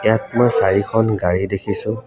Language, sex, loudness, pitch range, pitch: Assamese, male, -17 LUFS, 100-115 Hz, 105 Hz